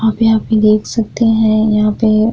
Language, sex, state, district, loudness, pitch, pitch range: Hindi, female, Bihar, Vaishali, -13 LUFS, 220 Hz, 215-225 Hz